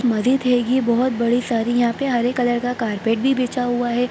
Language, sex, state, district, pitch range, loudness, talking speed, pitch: Hindi, female, Bihar, Darbhanga, 235-250 Hz, -19 LUFS, 145 wpm, 245 Hz